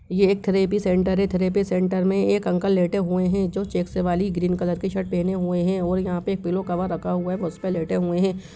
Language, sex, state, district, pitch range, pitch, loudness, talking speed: Hindi, female, Bihar, Lakhisarai, 180-190 Hz, 185 Hz, -23 LUFS, 265 wpm